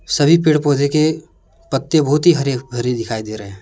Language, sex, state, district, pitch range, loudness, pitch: Hindi, male, Jharkhand, Deoghar, 120-155 Hz, -16 LUFS, 140 Hz